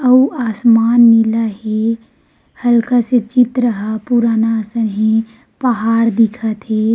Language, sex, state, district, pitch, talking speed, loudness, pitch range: Chhattisgarhi, female, Chhattisgarh, Rajnandgaon, 230 Hz, 120 wpm, -14 LUFS, 220-240 Hz